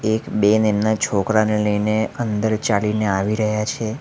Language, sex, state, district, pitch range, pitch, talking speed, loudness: Gujarati, male, Gujarat, Valsad, 105-110 Hz, 110 Hz, 150 wpm, -19 LUFS